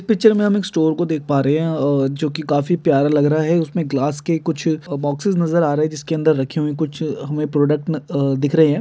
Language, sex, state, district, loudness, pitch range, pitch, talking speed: Hindi, male, Bihar, Muzaffarpur, -18 LUFS, 145-165 Hz, 155 Hz, 260 wpm